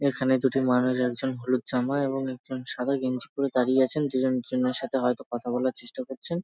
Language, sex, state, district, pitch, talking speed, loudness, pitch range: Bengali, male, West Bengal, Jalpaiguri, 130 Hz, 225 wpm, -27 LUFS, 125-135 Hz